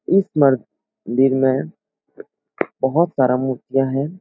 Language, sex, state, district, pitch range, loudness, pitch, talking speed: Hindi, male, Bihar, Supaul, 130-145 Hz, -19 LUFS, 135 Hz, 115 wpm